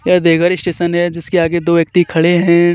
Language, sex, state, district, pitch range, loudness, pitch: Hindi, male, Jharkhand, Deoghar, 170-175 Hz, -13 LUFS, 175 Hz